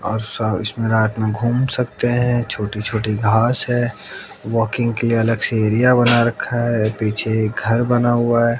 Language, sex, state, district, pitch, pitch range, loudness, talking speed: Hindi, male, Haryana, Jhajjar, 115 Hz, 110-120 Hz, -18 LUFS, 190 wpm